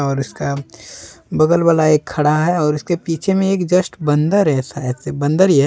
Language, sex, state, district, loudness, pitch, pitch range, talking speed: Hindi, male, Jharkhand, Deoghar, -17 LUFS, 155 Hz, 145-175 Hz, 210 wpm